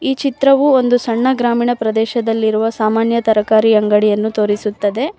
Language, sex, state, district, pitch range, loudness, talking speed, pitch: Kannada, female, Karnataka, Bangalore, 215-245 Hz, -14 LUFS, 115 wpm, 225 Hz